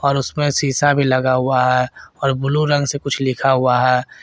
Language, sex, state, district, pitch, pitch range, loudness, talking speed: Hindi, male, Jharkhand, Garhwa, 135 Hz, 130-140 Hz, -17 LUFS, 210 wpm